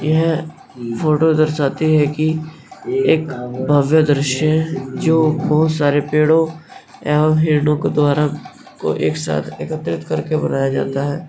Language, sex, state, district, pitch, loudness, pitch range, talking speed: Hindi, male, Bihar, Kishanganj, 150 Hz, -17 LUFS, 145-155 Hz, 135 wpm